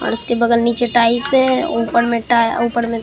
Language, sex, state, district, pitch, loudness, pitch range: Hindi, female, Bihar, Katihar, 235 Hz, -15 LUFS, 235-240 Hz